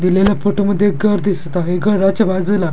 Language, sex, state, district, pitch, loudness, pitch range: Marathi, male, Maharashtra, Dhule, 195 Hz, -15 LUFS, 180-205 Hz